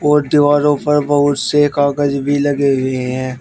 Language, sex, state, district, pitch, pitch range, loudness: Hindi, male, Uttar Pradesh, Shamli, 145 Hz, 140-145 Hz, -14 LUFS